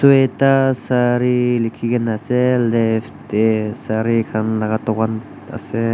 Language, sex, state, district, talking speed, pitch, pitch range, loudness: Nagamese, male, Nagaland, Dimapur, 110 wpm, 115 Hz, 110-125 Hz, -17 LUFS